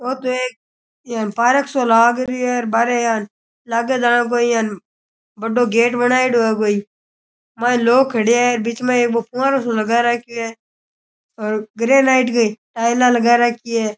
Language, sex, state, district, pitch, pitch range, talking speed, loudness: Rajasthani, male, Rajasthan, Churu, 235 Hz, 230-245 Hz, 170 wpm, -17 LUFS